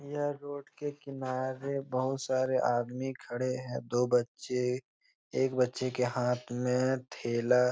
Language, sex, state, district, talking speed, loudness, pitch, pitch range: Hindi, male, Bihar, Jahanabad, 140 wpm, -32 LUFS, 130 Hz, 125-135 Hz